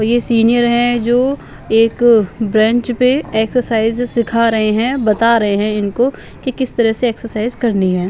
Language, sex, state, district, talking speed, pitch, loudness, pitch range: Hindi, female, Bihar, Patna, 165 wpm, 230 Hz, -14 LUFS, 220-245 Hz